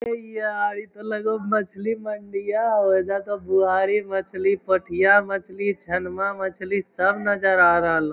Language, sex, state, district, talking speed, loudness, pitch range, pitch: Magahi, male, Bihar, Lakhisarai, 160 wpm, -22 LUFS, 190-210 Hz, 200 Hz